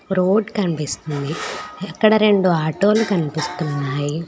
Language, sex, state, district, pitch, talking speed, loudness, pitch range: Telugu, female, Telangana, Hyderabad, 175 Hz, 100 wpm, -19 LUFS, 150-200 Hz